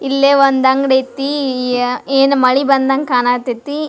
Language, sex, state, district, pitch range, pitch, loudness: Kannada, female, Karnataka, Dharwad, 255-275 Hz, 270 Hz, -14 LUFS